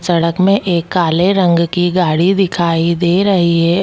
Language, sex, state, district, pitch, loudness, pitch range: Hindi, male, Delhi, New Delhi, 175 Hz, -13 LUFS, 170-185 Hz